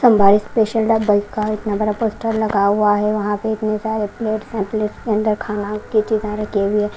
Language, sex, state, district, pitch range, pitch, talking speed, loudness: Hindi, female, Haryana, Rohtak, 210-220 Hz, 210 Hz, 180 wpm, -18 LUFS